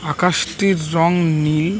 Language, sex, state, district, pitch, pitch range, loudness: Bengali, male, West Bengal, North 24 Parganas, 165 Hz, 155-180 Hz, -17 LUFS